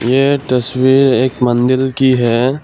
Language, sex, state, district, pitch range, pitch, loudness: Hindi, male, Assam, Kamrup Metropolitan, 125-135 Hz, 130 Hz, -13 LUFS